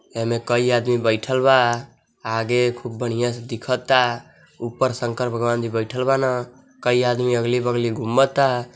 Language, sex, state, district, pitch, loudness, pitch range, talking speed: Bhojpuri, male, Uttar Pradesh, Deoria, 120 Hz, -21 LUFS, 120-125 Hz, 135 wpm